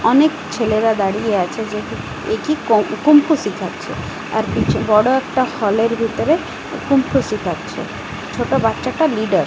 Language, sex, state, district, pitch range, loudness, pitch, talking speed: Bengali, female, Odisha, Malkangiri, 215-285 Hz, -18 LUFS, 225 Hz, 140 wpm